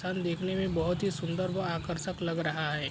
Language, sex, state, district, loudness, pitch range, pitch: Hindi, male, Bihar, Araria, -32 LUFS, 165-185 Hz, 175 Hz